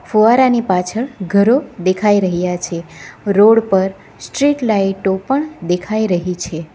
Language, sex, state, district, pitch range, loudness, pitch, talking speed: Gujarati, female, Gujarat, Valsad, 180-225 Hz, -15 LUFS, 195 Hz, 135 wpm